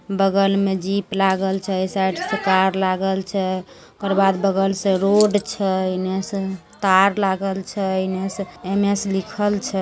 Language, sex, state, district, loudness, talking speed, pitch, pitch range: Maithili, female, Bihar, Samastipur, -20 LUFS, 165 wpm, 195 Hz, 190-200 Hz